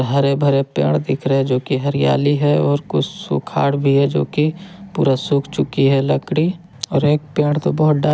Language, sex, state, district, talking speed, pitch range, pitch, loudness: Hindi, male, Jharkhand, Ranchi, 200 wpm, 135-150 Hz, 140 Hz, -17 LUFS